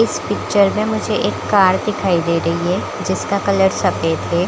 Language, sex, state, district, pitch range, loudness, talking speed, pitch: Hindi, female, Chhattisgarh, Bilaspur, 175-200 Hz, -17 LUFS, 190 wpm, 190 Hz